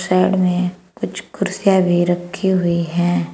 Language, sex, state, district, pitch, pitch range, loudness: Hindi, female, Uttar Pradesh, Saharanpur, 180 Hz, 175-190 Hz, -18 LUFS